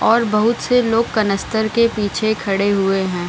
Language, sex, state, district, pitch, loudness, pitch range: Hindi, female, Bihar, Gaya, 215 Hz, -17 LUFS, 195-230 Hz